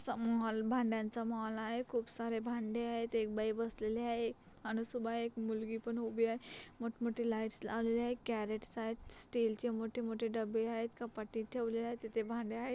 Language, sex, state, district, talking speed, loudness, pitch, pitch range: Marathi, female, Maharashtra, Chandrapur, 180 wpm, -39 LUFS, 230 Hz, 225-235 Hz